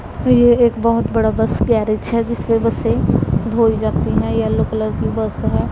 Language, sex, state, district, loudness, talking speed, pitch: Hindi, female, Punjab, Pathankot, -16 LUFS, 170 wpm, 215 Hz